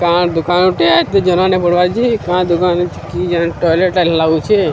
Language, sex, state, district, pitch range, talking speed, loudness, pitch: Odia, male, Odisha, Sambalpur, 170-185 Hz, 100 wpm, -13 LUFS, 175 Hz